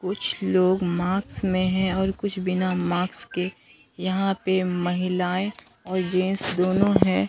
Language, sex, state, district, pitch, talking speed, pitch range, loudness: Hindi, female, Bihar, Katihar, 185 Hz, 140 wpm, 180-190 Hz, -24 LUFS